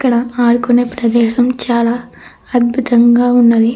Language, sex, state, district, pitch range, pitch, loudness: Telugu, female, Andhra Pradesh, Krishna, 235-245 Hz, 240 Hz, -12 LUFS